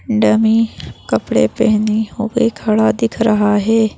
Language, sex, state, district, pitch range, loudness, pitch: Hindi, female, Madhya Pradesh, Bhopal, 205-225 Hz, -15 LUFS, 220 Hz